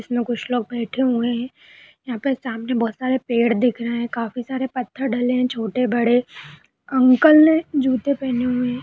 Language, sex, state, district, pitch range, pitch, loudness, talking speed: Hindi, female, Uttar Pradesh, Budaun, 235-260 Hz, 245 Hz, -20 LUFS, 215 wpm